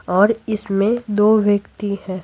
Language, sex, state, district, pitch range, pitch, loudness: Hindi, female, Bihar, Patna, 195-215 Hz, 205 Hz, -18 LUFS